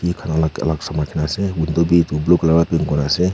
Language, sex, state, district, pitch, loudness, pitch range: Nagamese, male, Nagaland, Kohima, 80 Hz, -18 LUFS, 75-85 Hz